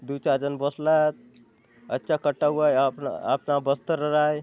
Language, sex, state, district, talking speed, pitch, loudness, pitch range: Halbi, male, Chhattisgarh, Bastar, 190 wpm, 140 Hz, -24 LUFS, 135-150 Hz